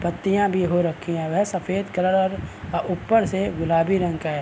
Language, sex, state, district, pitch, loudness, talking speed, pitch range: Hindi, male, Bihar, Vaishali, 180 Hz, -22 LUFS, 230 wpm, 165-195 Hz